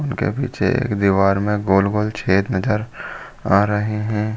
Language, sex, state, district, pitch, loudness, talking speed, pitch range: Hindi, male, Chhattisgarh, Bilaspur, 105 Hz, -19 LUFS, 180 wpm, 100-110 Hz